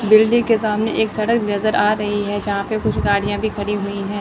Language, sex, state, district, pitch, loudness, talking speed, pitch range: Hindi, female, Chandigarh, Chandigarh, 210 Hz, -18 LUFS, 240 wpm, 205-220 Hz